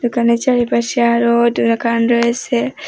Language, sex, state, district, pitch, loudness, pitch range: Bengali, female, Assam, Hailakandi, 235 Hz, -15 LUFS, 235-240 Hz